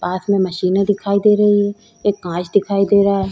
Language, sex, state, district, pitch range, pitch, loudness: Hindi, female, Uttar Pradesh, Budaun, 190-205 Hz, 200 Hz, -16 LUFS